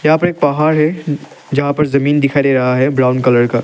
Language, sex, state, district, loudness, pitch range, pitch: Hindi, male, Arunachal Pradesh, Lower Dibang Valley, -14 LUFS, 130-150 Hz, 145 Hz